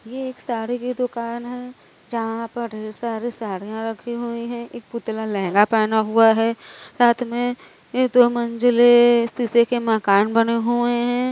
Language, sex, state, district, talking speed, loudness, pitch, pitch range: Hindi, female, Uttar Pradesh, Varanasi, 165 wpm, -20 LUFS, 235 Hz, 225-240 Hz